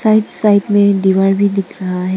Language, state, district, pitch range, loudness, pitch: Hindi, Arunachal Pradesh, Papum Pare, 190-205 Hz, -13 LUFS, 200 Hz